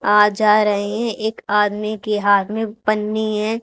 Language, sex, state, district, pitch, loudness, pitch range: Hindi, female, Haryana, Charkhi Dadri, 210 Hz, -18 LUFS, 210-220 Hz